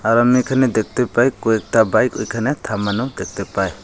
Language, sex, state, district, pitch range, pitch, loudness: Bengali, male, Tripura, Unakoti, 110-125 Hz, 110 Hz, -18 LUFS